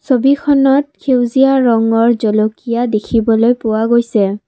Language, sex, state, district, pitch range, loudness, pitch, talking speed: Assamese, female, Assam, Kamrup Metropolitan, 220-265 Hz, -13 LUFS, 235 Hz, 95 wpm